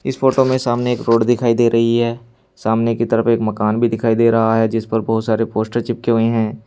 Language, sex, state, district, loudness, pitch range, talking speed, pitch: Hindi, male, Uttar Pradesh, Saharanpur, -16 LUFS, 110-120 Hz, 250 wpm, 115 Hz